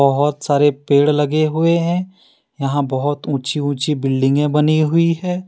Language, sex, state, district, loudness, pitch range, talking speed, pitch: Hindi, male, Jharkhand, Deoghar, -17 LUFS, 140-155 Hz, 155 wpm, 145 Hz